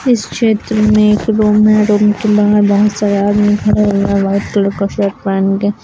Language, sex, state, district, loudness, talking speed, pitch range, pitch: Hindi, female, Jharkhand, Deoghar, -12 LUFS, 205 wpm, 200-210 Hz, 210 Hz